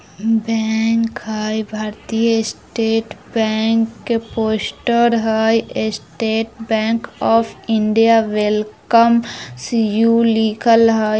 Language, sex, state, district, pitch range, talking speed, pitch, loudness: Bajjika, female, Bihar, Vaishali, 220-230 Hz, 95 wpm, 225 Hz, -17 LUFS